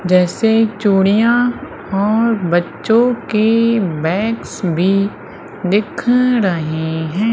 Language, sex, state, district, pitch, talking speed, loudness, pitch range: Hindi, female, Madhya Pradesh, Umaria, 205 Hz, 80 wpm, -15 LUFS, 180-230 Hz